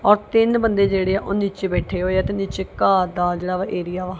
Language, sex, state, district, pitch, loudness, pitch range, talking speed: Punjabi, female, Punjab, Kapurthala, 190 Hz, -20 LUFS, 185-200 Hz, 255 wpm